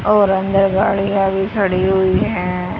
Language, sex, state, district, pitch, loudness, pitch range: Hindi, female, Haryana, Charkhi Dadri, 195 Hz, -16 LUFS, 190-200 Hz